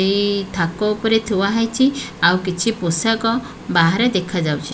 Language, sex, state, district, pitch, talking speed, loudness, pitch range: Odia, female, Odisha, Khordha, 200 Hz, 140 wpm, -18 LUFS, 175-225 Hz